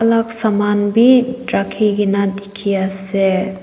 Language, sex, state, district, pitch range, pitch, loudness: Nagamese, female, Nagaland, Dimapur, 195-225 Hz, 205 Hz, -16 LUFS